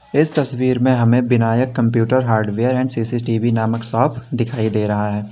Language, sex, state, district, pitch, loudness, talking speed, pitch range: Hindi, male, Uttar Pradesh, Lalitpur, 120 Hz, -17 LUFS, 170 wpm, 115-130 Hz